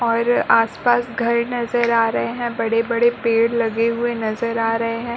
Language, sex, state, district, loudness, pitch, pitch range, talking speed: Hindi, female, Chhattisgarh, Bilaspur, -19 LUFS, 230 Hz, 230-235 Hz, 175 wpm